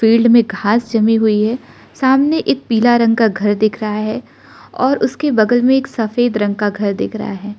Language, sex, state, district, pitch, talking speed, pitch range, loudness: Hindi, female, Arunachal Pradesh, Lower Dibang Valley, 225 Hz, 215 wpm, 215-245 Hz, -15 LUFS